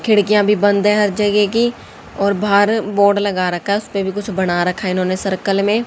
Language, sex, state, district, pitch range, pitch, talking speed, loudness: Hindi, female, Haryana, Jhajjar, 195-210 Hz, 200 Hz, 235 wpm, -16 LUFS